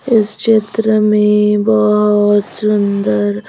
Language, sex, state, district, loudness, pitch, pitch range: Hindi, female, Madhya Pradesh, Bhopal, -13 LUFS, 210 Hz, 205-215 Hz